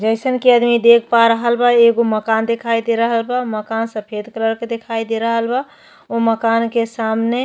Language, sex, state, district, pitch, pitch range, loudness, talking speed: Bhojpuri, female, Uttar Pradesh, Ghazipur, 230 Hz, 225-235 Hz, -16 LUFS, 210 wpm